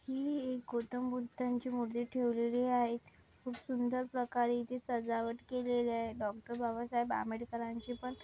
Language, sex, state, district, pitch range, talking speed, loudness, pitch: Marathi, female, Maharashtra, Nagpur, 235-250 Hz, 125 wpm, -37 LUFS, 240 Hz